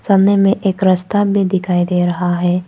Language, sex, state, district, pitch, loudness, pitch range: Hindi, female, Arunachal Pradesh, Papum Pare, 190 Hz, -14 LUFS, 180-195 Hz